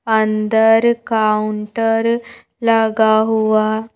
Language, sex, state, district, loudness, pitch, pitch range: Hindi, female, Madhya Pradesh, Bhopal, -16 LUFS, 220 Hz, 215-225 Hz